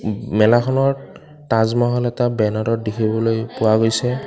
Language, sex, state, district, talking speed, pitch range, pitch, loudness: Assamese, male, Assam, Kamrup Metropolitan, 100 wpm, 110-125 Hz, 115 Hz, -18 LUFS